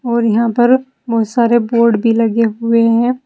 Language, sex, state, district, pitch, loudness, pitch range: Hindi, female, Uttar Pradesh, Saharanpur, 235 Hz, -13 LUFS, 230-240 Hz